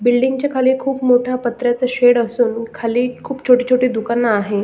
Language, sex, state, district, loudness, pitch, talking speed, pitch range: Marathi, male, Maharashtra, Solapur, -16 LUFS, 245 Hz, 180 wpm, 235-255 Hz